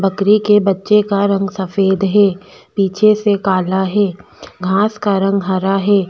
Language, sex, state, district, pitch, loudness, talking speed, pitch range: Hindi, female, Chhattisgarh, Bastar, 195 Hz, -15 LUFS, 160 wpm, 190-205 Hz